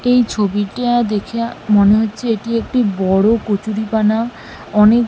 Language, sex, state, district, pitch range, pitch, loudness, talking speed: Bengali, female, West Bengal, Malda, 210-230 Hz, 220 Hz, -16 LUFS, 120 wpm